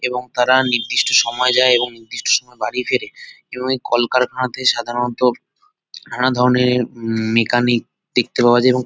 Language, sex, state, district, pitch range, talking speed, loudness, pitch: Bengali, male, West Bengal, North 24 Parganas, 120-125 Hz, 140 wpm, -17 LUFS, 125 Hz